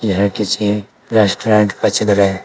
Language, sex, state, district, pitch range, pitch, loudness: Hindi, male, Uttar Pradesh, Saharanpur, 100-105 Hz, 105 Hz, -15 LUFS